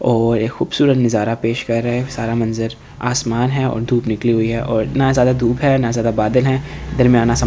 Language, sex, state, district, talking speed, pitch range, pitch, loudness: Hindi, male, Delhi, New Delhi, 240 wpm, 115-125 Hz, 120 Hz, -17 LUFS